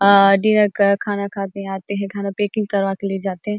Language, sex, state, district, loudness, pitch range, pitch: Hindi, female, Chhattisgarh, Bastar, -19 LUFS, 195-205 Hz, 200 Hz